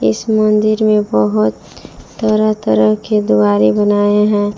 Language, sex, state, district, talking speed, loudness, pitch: Hindi, female, Jharkhand, Palamu, 130 wpm, -13 LUFS, 205 Hz